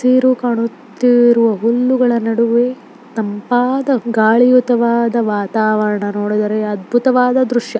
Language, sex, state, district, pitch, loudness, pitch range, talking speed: Kannada, female, Karnataka, Belgaum, 235 Hz, -14 LUFS, 220-250 Hz, 75 wpm